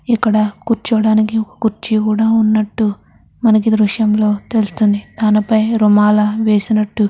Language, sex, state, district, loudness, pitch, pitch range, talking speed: Telugu, female, Andhra Pradesh, Krishna, -14 LUFS, 215 Hz, 210-220 Hz, 120 wpm